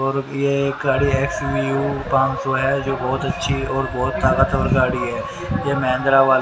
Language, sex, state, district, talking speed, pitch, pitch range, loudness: Hindi, male, Haryana, Rohtak, 175 wpm, 135 Hz, 130-140 Hz, -20 LUFS